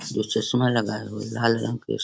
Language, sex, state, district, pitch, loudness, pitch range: Hindi, female, Bihar, Sitamarhi, 115 Hz, -25 LUFS, 105-120 Hz